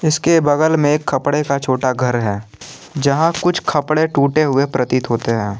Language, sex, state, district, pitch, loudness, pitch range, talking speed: Hindi, male, Jharkhand, Palamu, 140 Hz, -16 LUFS, 125-155 Hz, 170 wpm